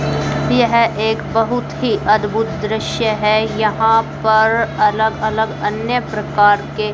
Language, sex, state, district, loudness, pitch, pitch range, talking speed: Hindi, female, Haryana, Charkhi Dadri, -16 LUFS, 220 Hz, 210-225 Hz, 120 wpm